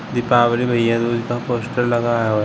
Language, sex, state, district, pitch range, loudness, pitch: Hindi, male, Uttar Pradesh, Shamli, 115-120 Hz, -18 LUFS, 120 Hz